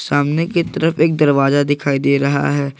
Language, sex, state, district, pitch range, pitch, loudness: Hindi, male, Jharkhand, Garhwa, 140-160 Hz, 145 Hz, -16 LUFS